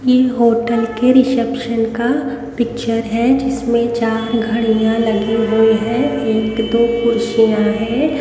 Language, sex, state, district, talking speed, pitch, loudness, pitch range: Hindi, female, Haryana, Rohtak, 125 wpm, 230 Hz, -15 LUFS, 225-245 Hz